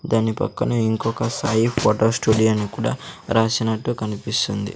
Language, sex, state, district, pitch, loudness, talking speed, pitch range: Telugu, male, Andhra Pradesh, Sri Satya Sai, 110 Hz, -21 LUFS, 125 wpm, 110-115 Hz